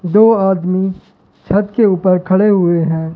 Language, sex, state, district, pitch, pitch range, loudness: Hindi, male, Madhya Pradesh, Katni, 190 Hz, 180-205 Hz, -13 LUFS